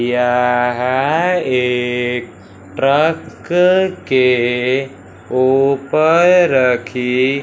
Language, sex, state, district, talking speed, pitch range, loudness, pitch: Hindi, male, Punjab, Fazilka, 50 wpm, 125-140 Hz, -15 LUFS, 125 Hz